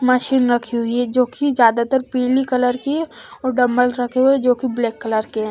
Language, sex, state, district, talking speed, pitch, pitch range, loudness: Hindi, female, Haryana, Charkhi Dadri, 205 wpm, 250 Hz, 240-255 Hz, -18 LUFS